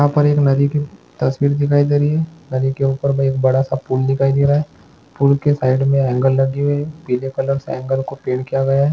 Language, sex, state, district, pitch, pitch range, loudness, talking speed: Hindi, male, Chhattisgarh, Rajnandgaon, 135 Hz, 135-145 Hz, -17 LUFS, 260 wpm